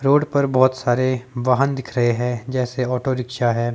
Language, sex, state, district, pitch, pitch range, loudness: Hindi, male, Himachal Pradesh, Shimla, 125 Hz, 120-130 Hz, -20 LUFS